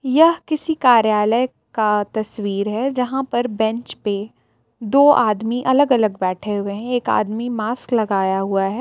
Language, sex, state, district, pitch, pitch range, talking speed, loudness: Hindi, female, Jharkhand, Palamu, 225 Hz, 210-250 Hz, 155 wpm, -19 LUFS